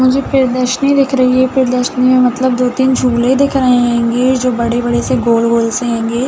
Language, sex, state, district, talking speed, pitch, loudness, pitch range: Hindi, female, Uttar Pradesh, Budaun, 200 wpm, 255 Hz, -12 LUFS, 240-260 Hz